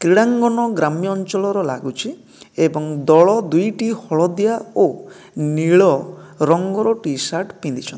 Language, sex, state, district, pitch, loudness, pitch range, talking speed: Odia, male, Odisha, Nuapada, 180 Hz, -17 LUFS, 155-210 Hz, 100 wpm